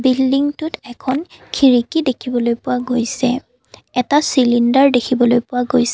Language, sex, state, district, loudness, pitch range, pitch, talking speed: Assamese, female, Assam, Kamrup Metropolitan, -16 LUFS, 245-275 Hz, 255 Hz, 120 wpm